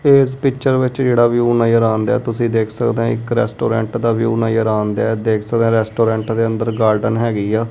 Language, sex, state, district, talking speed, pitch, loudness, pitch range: Punjabi, male, Punjab, Kapurthala, 235 wpm, 115 Hz, -16 LUFS, 110-120 Hz